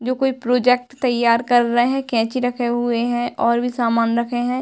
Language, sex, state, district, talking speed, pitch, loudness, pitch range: Hindi, female, Bihar, Darbhanga, 205 wpm, 240 Hz, -19 LUFS, 235-250 Hz